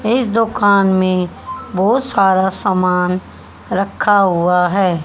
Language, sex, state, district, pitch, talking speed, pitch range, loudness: Hindi, female, Haryana, Charkhi Dadri, 195 Hz, 105 wpm, 185-225 Hz, -15 LUFS